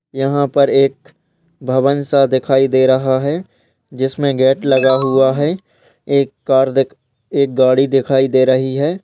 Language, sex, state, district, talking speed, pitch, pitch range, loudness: Hindi, male, Uttar Pradesh, Jyotiba Phule Nagar, 155 wpm, 135 Hz, 130-140 Hz, -14 LUFS